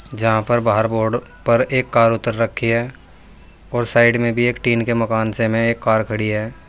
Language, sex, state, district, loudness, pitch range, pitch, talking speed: Hindi, male, Uttar Pradesh, Saharanpur, -17 LUFS, 110-120 Hz, 115 Hz, 215 wpm